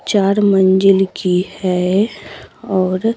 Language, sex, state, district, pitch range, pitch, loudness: Hindi, female, Bihar, Patna, 185-205 Hz, 195 Hz, -15 LUFS